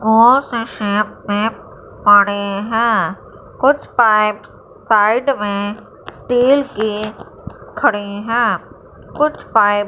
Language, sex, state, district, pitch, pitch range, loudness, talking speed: Hindi, female, Punjab, Fazilka, 215 Hz, 205-240 Hz, -16 LUFS, 85 wpm